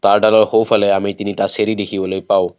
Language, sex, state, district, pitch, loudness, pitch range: Assamese, male, Assam, Kamrup Metropolitan, 100 Hz, -15 LUFS, 100-110 Hz